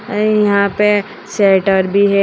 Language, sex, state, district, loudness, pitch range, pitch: Hindi, female, Uttar Pradesh, Shamli, -13 LUFS, 200-210 Hz, 200 Hz